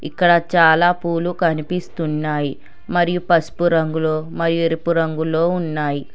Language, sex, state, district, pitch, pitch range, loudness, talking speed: Telugu, male, Telangana, Hyderabad, 165 Hz, 155-170 Hz, -18 LUFS, 100 wpm